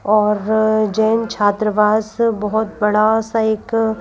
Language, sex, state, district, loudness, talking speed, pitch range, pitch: Hindi, female, Madhya Pradesh, Bhopal, -16 LUFS, 120 wpm, 210-220 Hz, 220 Hz